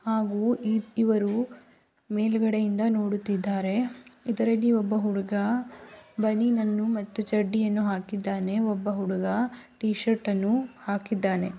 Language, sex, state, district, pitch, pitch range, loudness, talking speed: Kannada, female, Karnataka, Raichur, 215 Hz, 205-225 Hz, -27 LUFS, 95 wpm